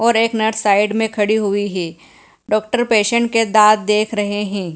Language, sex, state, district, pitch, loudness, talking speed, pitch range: Hindi, female, Punjab, Fazilka, 215 Hz, -16 LUFS, 190 wpm, 205-225 Hz